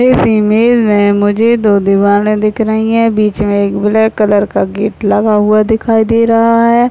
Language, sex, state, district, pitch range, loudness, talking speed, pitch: Hindi, male, Chhattisgarh, Raigarh, 205-225 Hz, -10 LUFS, 190 wpm, 215 Hz